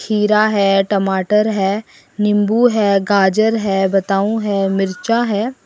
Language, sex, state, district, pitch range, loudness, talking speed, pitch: Hindi, female, Assam, Sonitpur, 195-215 Hz, -15 LUFS, 125 wpm, 205 Hz